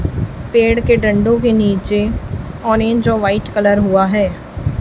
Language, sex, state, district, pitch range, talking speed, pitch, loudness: Hindi, female, Chhattisgarh, Raipur, 205-230 Hz, 135 wpm, 210 Hz, -15 LUFS